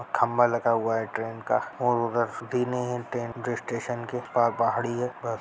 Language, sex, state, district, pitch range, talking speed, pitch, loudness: Hindi, male, Bihar, Jahanabad, 115-125 Hz, 165 wpm, 120 Hz, -27 LUFS